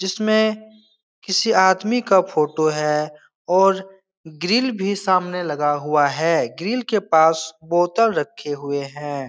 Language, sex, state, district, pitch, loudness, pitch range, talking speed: Hindi, male, Bihar, Jahanabad, 180 Hz, -19 LUFS, 155-210 Hz, 130 wpm